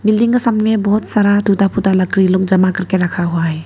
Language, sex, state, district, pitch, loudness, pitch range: Hindi, female, Arunachal Pradesh, Papum Pare, 195 Hz, -14 LUFS, 185-215 Hz